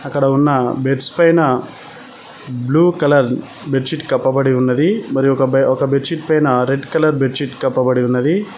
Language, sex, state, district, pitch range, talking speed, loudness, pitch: Telugu, male, Telangana, Mahabubabad, 130-155 Hz, 145 wpm, -15 LUFS, 135 Hz